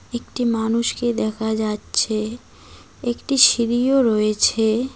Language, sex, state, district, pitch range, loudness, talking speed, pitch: Bengali, female, West Bengal, Cooch Behar, 220-240 Hz, -19 LUFS, 85 wpm, 235 Hz